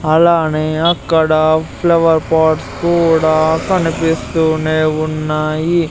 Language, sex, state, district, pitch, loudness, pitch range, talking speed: Telugu, male, Andhra Pradesh, Sri Satya Sai, 160 Hz, -14 LUFS, 155-165 Hz, 70 wpm